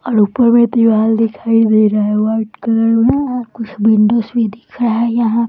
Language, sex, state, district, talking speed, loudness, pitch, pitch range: Hindi, female, Bihar, Bhagalpur, 220 wpm, -13 LUFS, 225 Hz, 220-235 Hz